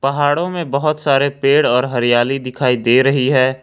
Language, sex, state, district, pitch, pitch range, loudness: Hindi, male, Jharkhand, Ranchi, 135 Hz, 125-145 Hz, -15 LUFS